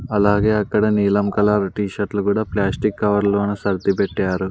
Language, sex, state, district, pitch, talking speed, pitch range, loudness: Telugu, male, Andhra Pradesh, Sri Satya Sai, 100 Hz, 135 wpm, 100-105 Hz, -19 LUFS